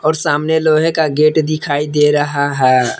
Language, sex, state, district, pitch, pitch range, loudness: Hindi, male, Jharkhand, Palamu, 150 Hz, 145-155 Hz, -14 LUFS